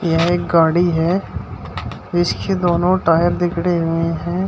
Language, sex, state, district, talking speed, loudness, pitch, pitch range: Hindi, male, Uttar Pradesh, Shamli, 135 wpm, -17 LUFS, 170 Hz, 165-175 Hz